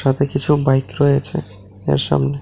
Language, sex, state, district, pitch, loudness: Bengali, male, Tripura, West Tripura, 135 Hz, -18 LUFS